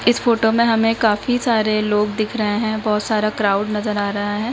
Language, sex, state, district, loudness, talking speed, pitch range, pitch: Hindi, female, Bihar, Darbhanga, -18 LUFS, 225 wpm, 210-225 Hz, 215 Hz